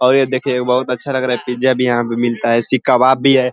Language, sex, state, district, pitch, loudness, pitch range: Hindi, male, Uttar Pradesh, Ghazipur, 125 Hz, -15 LUFS, 125-130 Hz